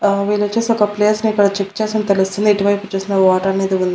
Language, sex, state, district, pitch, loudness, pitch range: Telugu, female, Andhra Pradesh, Annamaya, 200 Hz, -16 LUFS, 195-210 Hz